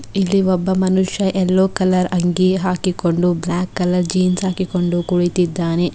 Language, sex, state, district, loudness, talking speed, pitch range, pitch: Kannada, female, Karnataka, Bidar, -17 LUFS, 120 wpm, 175-190 Hz, 185 Hz